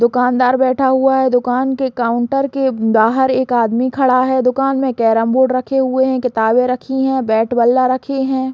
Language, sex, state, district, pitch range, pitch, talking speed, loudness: Hindi, female, Chhattisgarh, Balrampur, 245-265 Hz, 255 Hz, 195 wpm, -15 LUFS